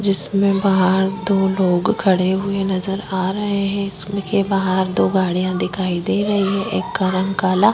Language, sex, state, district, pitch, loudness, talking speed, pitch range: Hindi, female, Chhattisgarh, Korba, 195 Hz, -19 LUFS, 170 wpm, 185-200 Hz